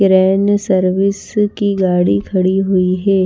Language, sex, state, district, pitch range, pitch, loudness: Hindi, female, Maharashtra, Washim, 185-200 Hz, 190 Hz, -14 LUFS